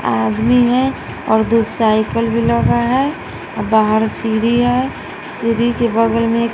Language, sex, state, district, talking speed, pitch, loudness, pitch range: Hindi, female, Bihar, West Champaran, 140 wpm, 230 Hz, -15 LUFS, 220-240 Hz